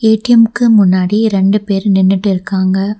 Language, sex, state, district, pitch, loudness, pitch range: Tamil, female, Tamil Nadu, Nilgiris, 200 Hz, -11 LUFS, 190-220 Hz